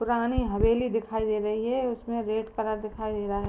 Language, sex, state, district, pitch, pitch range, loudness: Hindi, female, Uttar Pradesh, Ghazipur, 220 Hz, 215-235 Hz, -28 LUFS